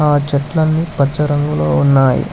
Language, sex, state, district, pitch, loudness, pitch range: Telugu, male, Telangana, Hyderabad, 145 Hz, -14 LUFS, 140-150 Hz